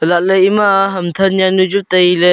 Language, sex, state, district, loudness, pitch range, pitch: Wancho, male, Arunachal Pradesh, Longding, -12 LUFS, 180-195 Hz, 190 Hz